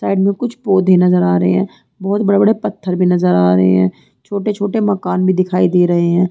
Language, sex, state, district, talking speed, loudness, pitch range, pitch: Hindi, female, Chhattisgarh, Rajnandgaon, 220 wpm, -14 LUFS, 175-200 Hz, 185 Hz